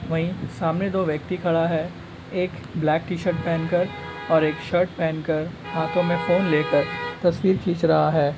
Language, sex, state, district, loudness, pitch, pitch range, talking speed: Hindi, male, Bihar, Begusarai, -23 LUFS, 165 Hz, 155-175 Hz, 160 wpm